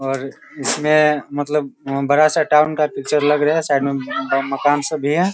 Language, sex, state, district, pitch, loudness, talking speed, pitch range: Hindi, male, Bihar, Sitamarhi, 145 Hz, -18 LUFS, 200 wpm, 140-150 Hz